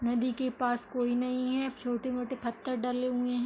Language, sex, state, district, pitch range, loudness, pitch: Hindi, female, Uttar Pradesh, Hamirpur, 245-255 Hz, -32 LUFS, 250 Hz